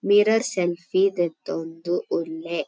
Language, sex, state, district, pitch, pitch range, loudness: Tulu, female, Karnataka, Dakshina Kannada, 175 Hz, 165-195 Hz, -24 LUFS